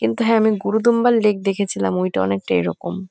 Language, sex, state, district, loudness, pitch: Bengali, female, West Bengal, Kolkata, -18 LUFS, 200 Hz